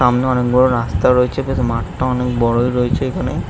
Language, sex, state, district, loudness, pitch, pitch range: Bengali, male, West Bengal, Jhargram, -16 LUFS, 125 Hz, 120-125 Hz